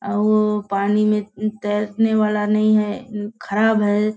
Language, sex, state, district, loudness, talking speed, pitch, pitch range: Hindi, female, Bihar, Kishanganj, -19 LUFS, 160 wpm, 210 Hz, 210-215 Hz